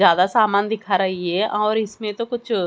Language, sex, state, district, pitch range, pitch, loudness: Hindi, female, Haryana, Charkhi Dadri, 190-220 Hz, 210 Hz, -20 LUFS